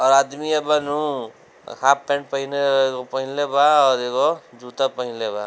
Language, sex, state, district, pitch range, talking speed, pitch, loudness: Bhojpuri, male, Bihar, Gopalganj, 130-145 Hz, 155 wpm, 135 Hz, -20 LUFS